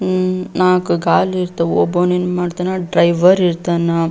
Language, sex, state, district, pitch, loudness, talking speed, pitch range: Kannada, female, Karnataka, Belgaum, 180 Hz, -15 LUFS, 130 wpm, 170-185 Hz